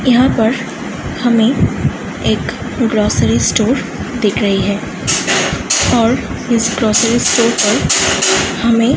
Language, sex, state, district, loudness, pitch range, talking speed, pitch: Hindi, female, Uttar Pradesh, Varanasi, -14 LUFS, 215-240 Hz, 105 wpm, 230 Hz